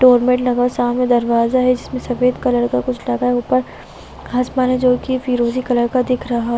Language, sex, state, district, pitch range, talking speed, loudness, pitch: Hindi, female, Bihar, Muzaffarpur, 245-255 Hz, 235 wpm, -17 LUFS, 250 Hz